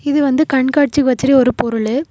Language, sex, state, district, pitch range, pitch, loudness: Tamil, female, Tamil Nadu, Kanyakumari, 255-285 Hz, 270 Hz, -14 LUFS